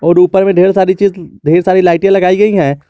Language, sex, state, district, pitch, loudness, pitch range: Hindi, male, Jharkhand, Garhwa, 185 Hz, -10 LUFS, 175-195 Hz